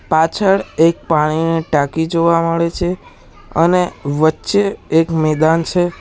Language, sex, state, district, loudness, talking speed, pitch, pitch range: Gujarati, male, Gujarat, Valsad, -15 LUFS, 120 wpm, 165 Hz, 160-175 Hz